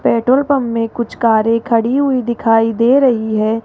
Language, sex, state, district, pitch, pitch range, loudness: Hindi, female, Rajasthan, Jaipur, 230 Hz, 225-255 Hz, -14 LUFS